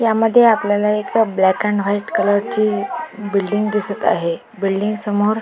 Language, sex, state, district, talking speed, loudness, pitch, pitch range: Marathi, female, Maharashtra, Pune, 190 wpm, -17 LUFS, 210 Hz, 200-215 Hz